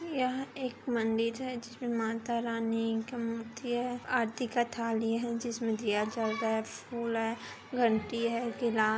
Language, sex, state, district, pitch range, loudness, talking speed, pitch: Hindi, female, Chhattisgarh, Kabirdham, 225-245 Hz, -33 LUFS, 160 wpm, 230 Hz